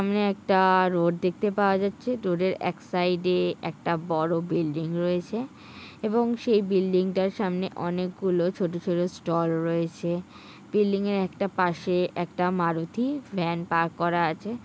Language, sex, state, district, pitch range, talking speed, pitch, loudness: Bengali, female, West Bengal, Kolkata, 170-195 Hz, 135 wpm, 180 Hz, -26 LUFS